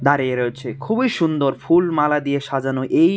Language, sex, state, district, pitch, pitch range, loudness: Bengali, male, Tripura, West Tripura, 140 Hz, 135-165 Hz, -19 LUFS